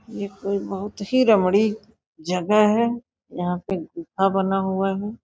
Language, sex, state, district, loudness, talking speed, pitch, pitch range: Hindi, female, Uttar Pradesh, Gorakhpur, -22 LUFS, 150 wpm, 200 Hz, 195-220 Hz